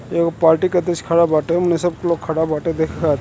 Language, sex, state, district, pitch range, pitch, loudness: Bhojpuri, male, Uttar Pradesh, Gorakhpur, 160-170 Hz, 170 Hz, -18 LUFS